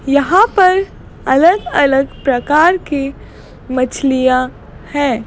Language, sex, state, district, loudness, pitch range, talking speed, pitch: Hindi, female, Madhya Pradesh, Bhopal, -13 LUFS, 260-345 Hz, 90 wpm, 280 Hz